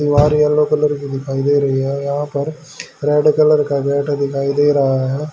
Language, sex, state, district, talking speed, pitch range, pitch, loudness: Hindi, male, Haryana, Rohtak, 205 wpm, 140-150 Hz, 145 Hz, -16 LUFS